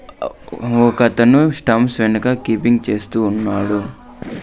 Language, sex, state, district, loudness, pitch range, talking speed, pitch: Telugu, male, Andhra Pradesh, Sri Satya Sai, -15 LUFS, 110-120 Hz, 95 wpm, 115 Hz